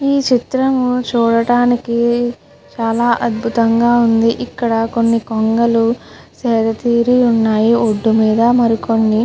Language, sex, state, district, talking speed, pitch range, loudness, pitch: Telugu, female, Andhra Pradesh, Guntur, 95 wpm, 225-240 Hz, -14 LUFS, 235 Hz